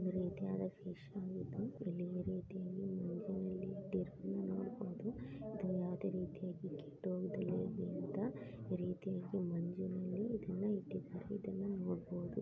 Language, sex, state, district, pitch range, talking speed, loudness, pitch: Kannada, female, Karnataka, Mysore, 180-195 Hz, 110 wpm, -43 LUFS, 185 Hz